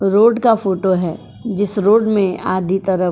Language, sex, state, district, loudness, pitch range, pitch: Hindi, female, Uttar Pradesh, Jyotiba Phule Nagar, -16 LUFS, 185-215 Hz, 195 Hz